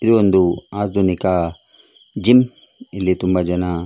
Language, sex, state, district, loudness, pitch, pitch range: Kannada, male, Karnataka, Dakshina Kannada, -17 LUFS, 95 Hz, 90-105 Hz